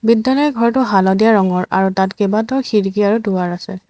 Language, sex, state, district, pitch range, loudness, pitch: Assamese, female, Assam, Sonitpur, 190-230 Hz, -15 LUFS, 205 Hz